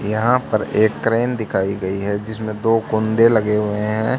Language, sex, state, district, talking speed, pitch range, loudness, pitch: Hindi, male, Haryana, Charkhi Dadri, 185 wpm, 105-115 Hz, -18 LUFS, 110 Hz